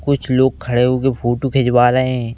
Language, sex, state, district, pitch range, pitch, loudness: Hindi, male, Madhya Pradesh, Bhopal, 120-130 Hz, 125 Hz, -16 LUFS